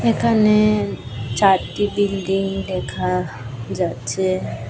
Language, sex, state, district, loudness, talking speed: Bengali, female, Tripura, West Tripura, -20 LUFS, 65 wpm